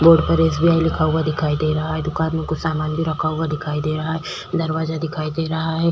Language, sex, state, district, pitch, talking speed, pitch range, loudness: Hindi, female, Uttar Pradesh, Jyotiba Phule Nagar, 160 Hz, 255 wpm, 155-160 Hz, -20 LUFS